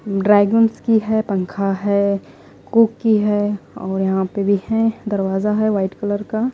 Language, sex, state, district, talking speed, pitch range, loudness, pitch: Hindi, female, Punjab, Fazilka, 165 wpm, 195-220 Hz, -18 LUFS, 205 Hz